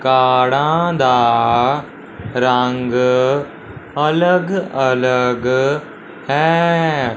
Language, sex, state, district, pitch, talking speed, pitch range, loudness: Hindi, male, Punjab, Fazilka, 130 Hz, 50 wpm, 125-150 Hz, -15 LUFS